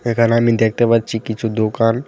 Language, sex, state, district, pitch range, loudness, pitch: Bengali, male, Tripura, West Tripura, 110-115 Hz, -16 LUFS, 115 Hz